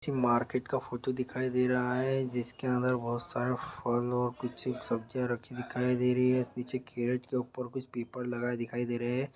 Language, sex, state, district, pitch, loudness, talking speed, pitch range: Hindi, male, Uttar Pradesh, Hamirpur, 125 Hz, -33 LUFS, 220 wpm, 120-125 Hz